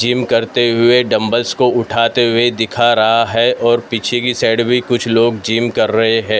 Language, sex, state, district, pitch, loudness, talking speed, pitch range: Hindi, male, Maharashtra, Mumbai Suburban, 120 Hz, -14 LUFS, 205 wpm, 115-120 Hz